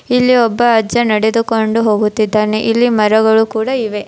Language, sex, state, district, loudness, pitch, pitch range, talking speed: Kannada, female, Karnataka, Dharwad, -13 LUFS, 220 Hz, 215-235 Hz, 130 wpm